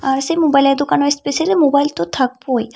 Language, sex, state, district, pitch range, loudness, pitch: Bengali, female, Tripura, Unakoti, 260-290 Hz, -15 LUFS, 280 Hz